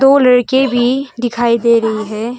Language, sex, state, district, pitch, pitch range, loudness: Hindi, female, Arunachal Pradesh, Longding, 245 Hz, 230-260 Hz, -13 LUFS